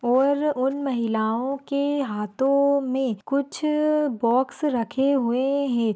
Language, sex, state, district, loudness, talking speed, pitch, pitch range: Hindi, female, Uttar Pradesh, Hamirpur, -23 LUFS, 110 wpm, 270 Hz, 240-280 Hz